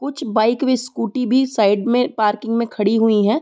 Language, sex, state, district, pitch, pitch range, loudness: Hindi, female, Uttar Pradesh, Varanasi, 230 Hz, 220-255 Hz, -18 LUFS